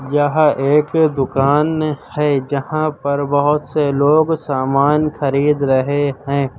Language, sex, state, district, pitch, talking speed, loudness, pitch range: Hindi, male, Uttar Pradesh, Lucknow, 145 Hz, 120 wpm, -16 LUFS, 140-150 Hz